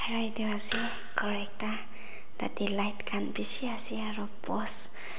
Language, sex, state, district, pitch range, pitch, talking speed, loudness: Nagamese, female, Nagaland, Dimapur, 205-225 Hz, 210 Hz, 125 wpm, -23 LUFS